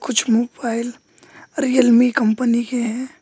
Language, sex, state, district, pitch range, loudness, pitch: Hindi, male, West Bengal, Alipurduar, 235-270 Hz, -18 LUFS, 245 Hz